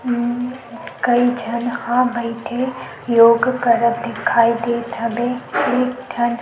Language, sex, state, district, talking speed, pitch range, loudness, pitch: Chhattisgarhi, female, Chhattisgarh, Sukma, 85 wpm, 235-245 Hz, -18 LUFS, 240 Hz